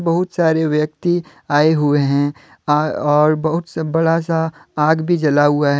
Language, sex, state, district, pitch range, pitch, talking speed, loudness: Hindi, male, Jharkhand, Deoghar, 150-165 Hz, 155 Hz, 165 wpm, -17 LUFS